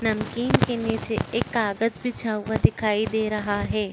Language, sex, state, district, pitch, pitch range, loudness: Chhattisgarhi, female, Chhattisgarh, Korba, 220 Hz, 210-230 Hz, -24 LUFS